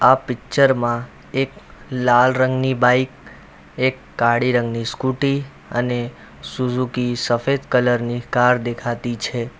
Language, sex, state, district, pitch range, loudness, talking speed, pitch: Gujarati, male, Gujarat, Valsad, 120-130 Hz, -19 LUFS, 120 wpm, 125 Hz